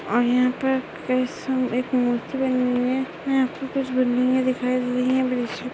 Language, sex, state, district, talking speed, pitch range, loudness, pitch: Hindi, female, Chhattisgarh, Raigarh, 210 wpm, 250-260 Hz, -23 LUFS, 255 Hz